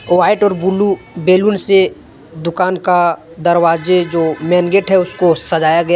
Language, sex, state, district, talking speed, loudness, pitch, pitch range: Hindi, male, Jharkhand, Deoghar, 160 wpm, -13 LUFS, 175 Hz, 165-190 Hz